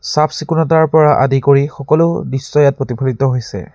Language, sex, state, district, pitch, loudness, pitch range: Assamese, male, Assam, Sonitpur, 140 Hz, -13 LUFS, 135-155 Hz